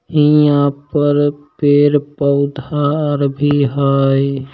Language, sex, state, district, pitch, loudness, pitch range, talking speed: Maithili, male, Bihar, Samastipur, 145 Hz, -14 LUFS, 140-145 Hz, 95 wpm